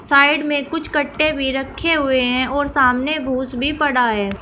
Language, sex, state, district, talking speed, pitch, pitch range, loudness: Hindi, female, Uttar Pradesh, Shamli, 190 wpm, 280 Hz, 255-295 Hz, -17 LUFS